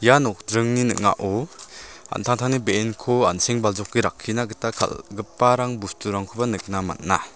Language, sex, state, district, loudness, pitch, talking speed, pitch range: Garo, male, Meghalaya, South Garo Hills, -22 LUFS, 110 Hz, 100 wpm, 100-120 Hz